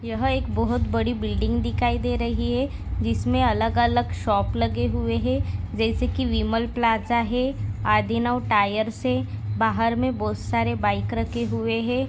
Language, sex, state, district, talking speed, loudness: Hindi, female, Maharashtra, Dhule, 160 wpm, -24 LUFS